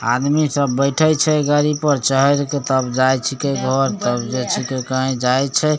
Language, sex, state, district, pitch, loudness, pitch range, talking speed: Maithili, male, Bihar, Samastipur, 135 Hz, -17 LUFS, 130-145 Hz, 155 wpm